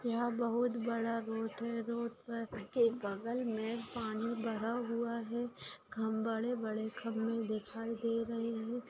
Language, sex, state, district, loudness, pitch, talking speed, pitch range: Hindi, female, Maharashtra, Nagpur, -38 LUFS, 230 Hz, 140 wpm, 225-235 Hz